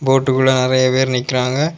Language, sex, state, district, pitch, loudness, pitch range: Tamil, male, Tamil Nadu, Kanyakumari, 130 Hz, -15 LUFS, 130-135 Hz